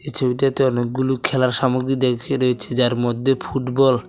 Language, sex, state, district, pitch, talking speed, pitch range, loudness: Bengali, male, Tripura, West Tripura, 130 Hz, 145 wpm, 125-135 Hz, -20 LUFS